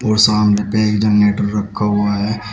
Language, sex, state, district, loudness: Hindi, male, Uttar Pradesh, Shamli, -15 LUFS